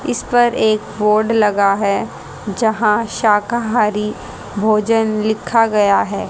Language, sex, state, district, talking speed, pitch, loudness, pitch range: Hindi, female, Haryana, Jhajjar, 105 wpm, 215 Hz, -16 LUFS, 210-225 Hz